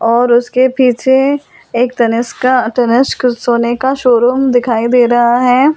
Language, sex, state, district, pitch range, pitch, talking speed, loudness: Hindi, female, Delhi, New Delhi, 240-255 Hz, 245 Hz, 135 wpm, -11 LUFS